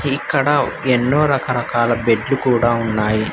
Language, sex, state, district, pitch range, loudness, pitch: Telugu, male, Telangana, Hyderabad, 120-135 Hz, -17 LUFS, 125 Hz